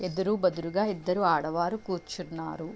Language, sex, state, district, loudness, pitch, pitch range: Telugu, female, Andhra Pradesh, Visakhapatnam, -29 LUFS, 180 Hz, 170-195 Hz